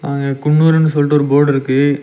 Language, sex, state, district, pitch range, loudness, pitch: Tamil, male, Tamil Nadu, Nilgiris, 140-150 Hz, -13 LUFS, 145 Hz